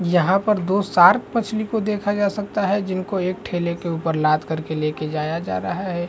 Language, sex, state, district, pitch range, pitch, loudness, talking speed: Hindi, male, Chhattisgarh, Rajnandgaon, 170-205 Hz, 185 Hz, -21 LUFS, 225 wpm